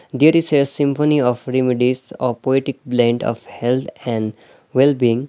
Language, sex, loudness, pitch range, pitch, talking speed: English, male, -18 LUFS, 120-140 Hz, 130 Hz, 160 wpm